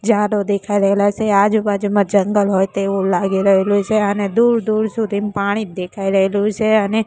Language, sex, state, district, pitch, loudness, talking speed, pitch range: Gujarati, female, Gujarat, Gandhinagar, 205 Hz, -16 LUFS, 180 wpm, 195-215 Hz